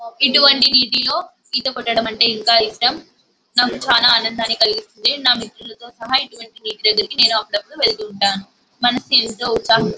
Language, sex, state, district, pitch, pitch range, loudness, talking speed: Telugu, female, Andhra Pradesh, Anantapur, 240 Hz, 225-265 Hz, -15 LUFS, 95 wpm